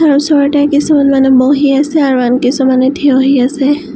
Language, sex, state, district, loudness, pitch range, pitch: Assamese, female, Assam, Sonitpur, -10 LUFS, 265-290 Hz, 280 Hz